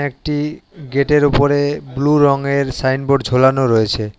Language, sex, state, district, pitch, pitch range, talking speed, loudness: Bengali, male, West Bengal, Alipurduar, 140 Hz, 130-145 Hz, 115 wpm, -16 LUFS